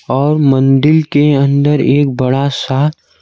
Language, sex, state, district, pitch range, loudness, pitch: Hindi, male, Bihar, Kaimur, 135-145 Hz, -12 LUFS, 140 Hz